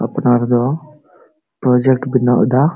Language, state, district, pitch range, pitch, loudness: Santali, Jharkhand, Sahebganj, 120-145 Hz, 130 Hz, -15 LUFS